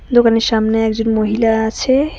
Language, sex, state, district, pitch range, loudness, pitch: Bengali, female, West Bengal, Cooch Behar, 220-235 Hz, -15 LUFS, 225 Hz